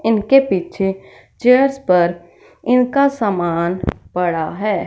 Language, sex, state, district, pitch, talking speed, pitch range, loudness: Hindi, female, Punjab, Fazilka, 200 Hz, 100 wpm, 175-250 Hz, -16 LUFS